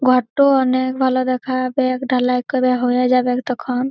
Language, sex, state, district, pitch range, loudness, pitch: Bengali, female, West Bengal, Malda, 250-260 Hz, -17 LUFS, 255 Hz